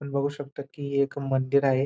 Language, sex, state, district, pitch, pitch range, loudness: Marathi, male, Maharashtra, Dhule, 140 Hz, 135-140 Hz, -27 LUFS